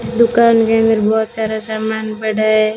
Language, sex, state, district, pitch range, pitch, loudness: Hindi, female, Rajasthan, Bikaner, 215-225 Hz, 220 Hz, -15 LUFS